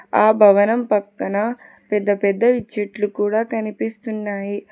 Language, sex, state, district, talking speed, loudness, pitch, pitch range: Telugu, female, Telangana, Hyderabad, 100 wpm, -19 LUFS, 210 Hz, 205-225 Hz